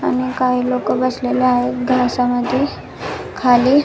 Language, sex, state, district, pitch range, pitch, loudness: Marathi, female, Maharashtra, Nagpur, 250-255 Hz, 250 Hz, -17 LUFS